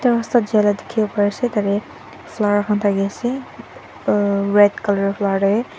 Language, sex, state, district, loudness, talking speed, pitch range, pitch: Nagamese, female, Nagaland, Dimapur, -19 LUFS, 125 wpm, 200-220 Hz, 205 Hz